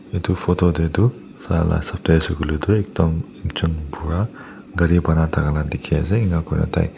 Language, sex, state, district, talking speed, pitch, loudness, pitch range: Nagamese, male, Nagaland, Dimapur, 215 wpm, 85 Hz, -20 LUFS, 80-95 Hz